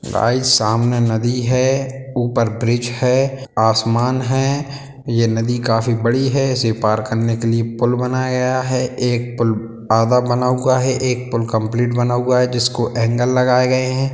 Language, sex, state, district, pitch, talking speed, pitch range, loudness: Hindi, male, Bihar, Sitamarhi, 120 Hz, 165 wpm, 115-130 Hz, -17 LUFS